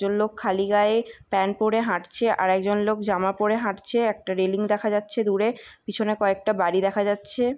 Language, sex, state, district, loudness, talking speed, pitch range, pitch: Bengali, female, West Bengal, North 24 Parganas, -24 LUFS, 200 wpm, 195-215 Hz, 205 Hz